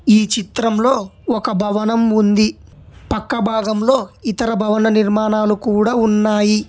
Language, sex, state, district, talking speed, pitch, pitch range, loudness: Telugu, male, Telangana, Hyderabad, 110 wpm, 215 Hz, 210-230 Hz, -16 LUFS